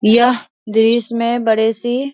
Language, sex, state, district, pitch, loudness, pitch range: Hindi, female, Bihar, Vaishali, 235 Hz, -15 LUFS, 225-240 Hz